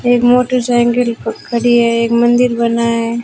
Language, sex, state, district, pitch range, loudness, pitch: Hindi, female, Rajasthan, Jaisalmer, 235-245 Hz, -13 LUFS, 240 Hz